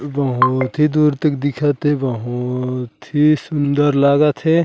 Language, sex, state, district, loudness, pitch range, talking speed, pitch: Chhattisgarhi, male, Chhattisgarh, Raigarh, -17 LUFS, 130-150 Hz, 155 wpm, 145 Hz